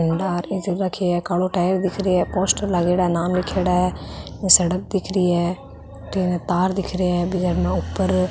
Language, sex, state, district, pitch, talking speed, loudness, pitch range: Marwari, female, Rajasthan, Nagaur, 180 Hz, 160 wpm, -20 LUFS, 175-185 Hz